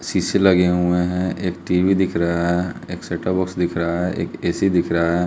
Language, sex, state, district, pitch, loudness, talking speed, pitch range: Hindi, male, Bihar, West Champaran, 90 Hz, -20 LUFS, 215 wpm, 85-90 Hz